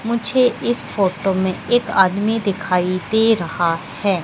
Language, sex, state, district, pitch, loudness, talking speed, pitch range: Hindi, female, Madhya Pradesh, Katni, 200 Hz, -18 LUFS, 140 wpm, 185-225 Hz